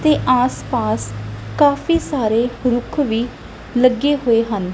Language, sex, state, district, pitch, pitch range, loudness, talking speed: Punjabi, female, Punjab, Kapurthala, 245 Hz, 215-280 Hz, -18 LUFS, 125 wpm